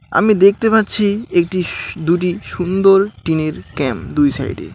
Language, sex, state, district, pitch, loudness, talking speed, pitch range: Bengali, male, West Bengal, Alipurduar, 180 Hz, -16 LUFS, 125 wpm, 155-200 Hz